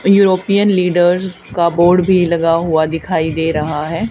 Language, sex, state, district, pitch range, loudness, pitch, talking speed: Hindi, female, Haryana, Charkhi Dadri, 165-185 Hz, -14 LUFS, 175 Hz, 160 wpm